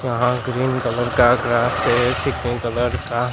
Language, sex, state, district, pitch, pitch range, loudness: Hindi, male, Gujarat, Gandhinagar, 120 Hz, 120-125 Hz, -19 LUFS